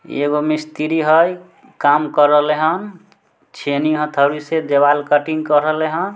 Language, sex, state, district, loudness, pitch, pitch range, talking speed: Maithili, male, Bihar, Samastipur, -16 LUFS, 155 Hz, 145-160 Hz, 155 wpm